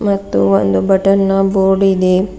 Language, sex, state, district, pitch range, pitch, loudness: Kannada, female, Karnataka, Bidar, 185-195 Hz, 195 Hz, -13 LUFS